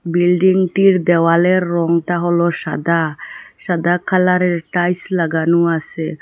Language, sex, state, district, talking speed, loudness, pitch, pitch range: Bengali, female, Assam, Hailakandi, 115 wpm, -16 LUFS, 175 Hz, 170-180 Hz